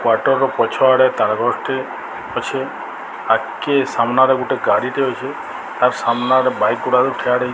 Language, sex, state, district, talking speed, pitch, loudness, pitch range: Odia, male, Odisha, Sambalpur, 165 wpm, 130 Hz, -17 LUFS, 125-130 Hz